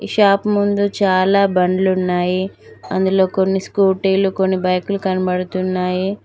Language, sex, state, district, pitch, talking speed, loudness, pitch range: Telugu, female, Telangana, Mahabubabad, 190 Hz, 95 wpm, -17 LUFS, 185-195 Hz